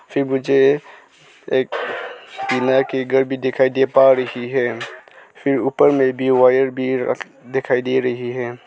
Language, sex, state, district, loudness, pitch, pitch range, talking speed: Hindi, male, Arunachal Pradesh, Lower Dibang Valley, -18 LUFS, 130 Hz, 130-135 Hz, 160 wpm